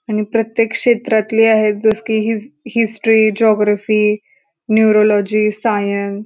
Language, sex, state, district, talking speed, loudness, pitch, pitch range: Marathi, female, Maharashtra, Pune, 115 wpm, -15 LUFS, 220 Hz, 210-225 Hz